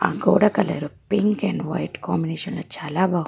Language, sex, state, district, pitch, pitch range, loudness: Telugu, female, Andhra Pradesh, Guntur, 185 Hz, 160-205 Hz, -23 LUFS